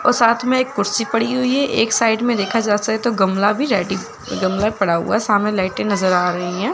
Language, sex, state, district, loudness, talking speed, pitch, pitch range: Hindi, female, Chandigarh, Chandigarh, -18 LUFS, 260 wpm, 215 Hz, 195-235 Hz